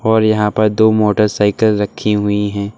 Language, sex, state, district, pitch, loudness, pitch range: Hindi, male, Uttar Pradesh, Saharanpur, 105 Hz, -14 LUFS, 105-110 Hz